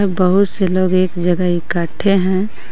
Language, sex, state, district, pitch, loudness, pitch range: Hindi, female, Jharkhand, Garhwa, 185 Hz, -16 LUFS, 175-195 Hz